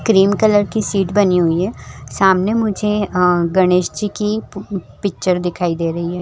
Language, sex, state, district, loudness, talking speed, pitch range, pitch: Hindi, female, Chhattisgarh, Rajnandgaon, -16 LUFS, 165 wpm, 180-210 Hz, 195 Hz